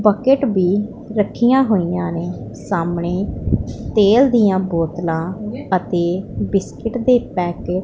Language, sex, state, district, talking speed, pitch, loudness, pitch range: Punjabi, female, Punjab, Pathankot, 105 wpm, 195 Hz, -18 LUFS, 175-225 Hz